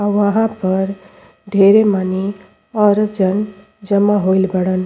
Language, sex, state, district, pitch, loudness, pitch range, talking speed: Bhojpuri, female, Uttar Pradesh, Ghazipur, 200 Hz, -15 LUFS, 190-205 Hz, 125 wpm